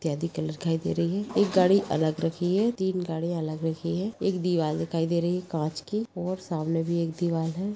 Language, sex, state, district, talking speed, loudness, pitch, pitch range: Hindi, female, Maharashtra, Pune, 240 wpm, -27 LUFS, 170 Hz, 160-185 Hz